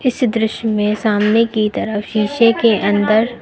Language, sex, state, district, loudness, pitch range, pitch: Hindi, female, Uttar Pradesh, Lucknow, -15 LUFS, 210-230 Hz, 220 Hz